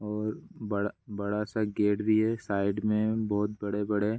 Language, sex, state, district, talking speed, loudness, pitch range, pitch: Hindi, male, Bihar, Bhagalpur, 160 wpm, -30 LUFS, 105-110 Hz, 105 Hz